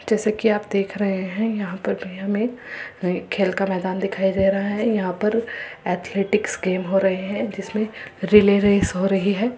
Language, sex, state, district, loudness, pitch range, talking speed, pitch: Hindi, female, Uttar Pradesh, Muzaffarnagar, -22 LUFS, 190-210 Hz, 190 wpm, 200 Hz